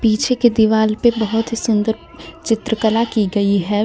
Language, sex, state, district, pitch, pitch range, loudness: Hindi, female, Jharkhand, Garhwa, 220 Hz, 215-230 Hz, -17 LUFS